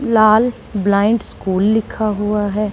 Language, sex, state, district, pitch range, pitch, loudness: Hindi, female, Haryana, Charkhi Dadri, 205-220 Hz, 210 Hz, -16 LUFS